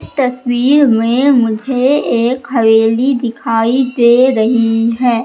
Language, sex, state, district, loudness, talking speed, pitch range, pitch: Hindi, female, Madhya Pradesh, Katni, -12 LUFS, 115 wpm, 230-260 Hz, 240 Hz